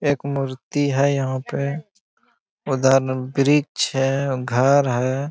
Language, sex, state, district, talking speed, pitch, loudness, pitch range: Hindi, male, Bihar, Bhagalpur, 115 wpm, 135 Hz, -20 LUFS, 130-140 Hz